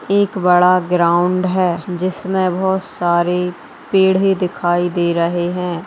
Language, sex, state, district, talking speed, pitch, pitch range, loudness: Hindi, female, Bihar, Gaya, 135 wpm, 180 Hz, 175-190 Hz, -16 LUFS